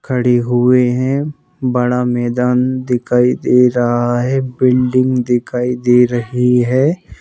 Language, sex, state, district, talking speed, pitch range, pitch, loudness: Hindi, male, Madhya Pradesh, Bhopal, 115 wpm, 125-130 Hz, 125 Hz, -14 LUFS